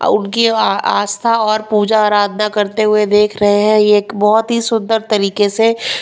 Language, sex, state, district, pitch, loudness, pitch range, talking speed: Hindi, female, Punjab, Pathankot, 210 Hz, -13 LUFS, 205-225 Hz, 180 wpm